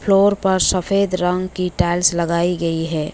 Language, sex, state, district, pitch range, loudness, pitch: Hindi, female, West Bengal, Alipurduar, 170-190 Hz, -18 LUFS, 180 Hz